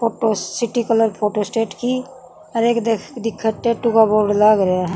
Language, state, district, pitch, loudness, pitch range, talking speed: Haryanvi, Haryana, Rohtak, 225 Hz, -18 LUFS, 210-235 Hz, 195 wpm